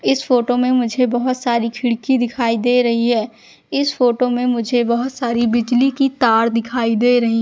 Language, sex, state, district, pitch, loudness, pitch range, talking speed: Hindi, female, Madhya Pradesh, Katni, 245 Hz, -17 LUFS, 235-250 Hz, 195 wpm